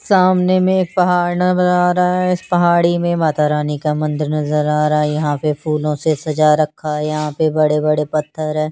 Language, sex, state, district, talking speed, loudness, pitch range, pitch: Hindi, female, Chandigarh, Chandigarh, 220 wpm, -16 LUFS, 150-180 Hz, 155 Hz